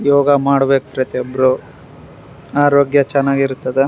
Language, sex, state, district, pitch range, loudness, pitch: Kannada, male, Karnataka, Raichur, 135-140 Hz, -15 LUFS, 140 Hz